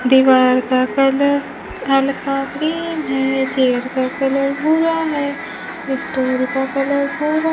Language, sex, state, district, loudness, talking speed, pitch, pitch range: Hindi, female, Rajasthan, Bikaner, -17 LUFS, 130 wpm, 275 Hz, 265-290 Hz